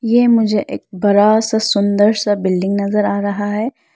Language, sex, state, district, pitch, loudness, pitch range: Hindi, female, Arunachal Pradesh, Lower Dibang Valley, 205 Hz, -15 LUFS, 200-220 Hz